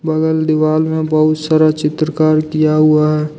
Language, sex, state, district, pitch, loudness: Hindi, male, Jharkhand, Deoghar, 155 Hz, -13 LUFS